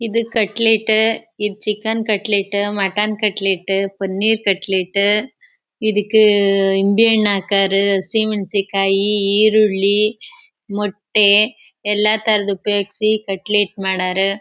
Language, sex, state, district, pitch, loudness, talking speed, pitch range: Kannada, female, Karnataka, Chamarajanagar, 210 Hz, -16 LUFS, 90 wpm, 195-215 Hz